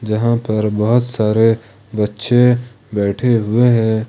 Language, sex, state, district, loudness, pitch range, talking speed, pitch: Hindi, male, Jharkhand, Ranchi, -16 LUFS, 110-120 Hz, 115 wpm, 115 Hz